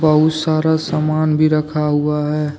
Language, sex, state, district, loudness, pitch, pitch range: Hindi, male, Jharkhand, Deoghar, -16 LUFS, 155 Hz, 150-155 Hz